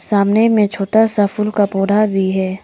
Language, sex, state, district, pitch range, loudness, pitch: Hindi, female, Arunachal Pradesh, Papum Pare, 195-215 Hz, -15 LUFS, 205 Hz